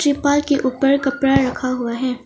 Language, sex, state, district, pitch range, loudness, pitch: Hindi, female, Arunachal Pradesh, Longding, 255-285 Hz, -18 LUFS, 270 Hz